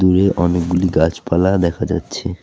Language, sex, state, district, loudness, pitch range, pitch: Bengali, male, West Bengal, Alipurduar, -17 LUFS, 85-95 Hz, 90 Hz